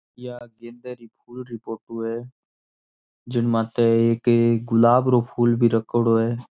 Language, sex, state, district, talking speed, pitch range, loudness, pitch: Marwari, male, Rajasthan, Nagaur, 140 wpm, 115-120 Hz, -20 LUFS, 120 Hz